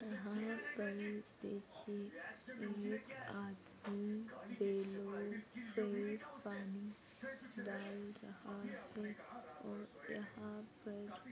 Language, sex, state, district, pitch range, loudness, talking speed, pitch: Hindi, female, Maharashtra, Solapur, 205-225 Hz, -47 LUFS, 75 wpm, 210 Hz